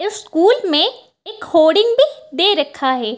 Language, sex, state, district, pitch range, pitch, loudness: Hindi, female, Bihar, Kishanganj, 295-425 Hz, 340 Hz, -15 LUFS